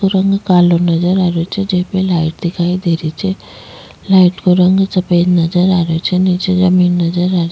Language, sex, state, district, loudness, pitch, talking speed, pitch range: Rajasthani, female, Rajasthan, Nagaur, -13 LUFS, 180 Hz, 200 wpm, 175-185 Hz